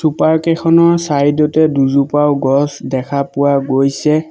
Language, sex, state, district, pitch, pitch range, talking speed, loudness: Assamese, male, Assam, Sonitpur, 145 Hz, 140-155 Hz, 125 wpm, -13 LUFS